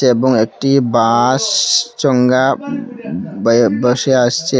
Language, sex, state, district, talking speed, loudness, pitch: Bengali, male, Assam, Hailakandi, 90 wpm, -14 LUFS, 130 Hz